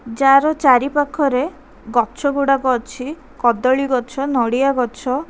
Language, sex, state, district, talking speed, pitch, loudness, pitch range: Odia, female, Odisha, Khordha, 100 wpm, 265 Hz, -17 LUFS, 250-280 Hz